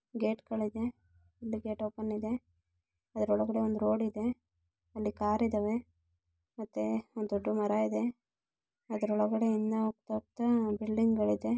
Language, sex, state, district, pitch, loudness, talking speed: Kannada, female, Karnataka, Shimoga, 215 Hz, -33 LUFS, 125 wpm